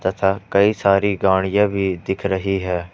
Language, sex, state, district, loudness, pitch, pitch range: Hindi, male, Jharkhand, Ranchi, -19 LUFS, 95 Hz, 95-100 Hz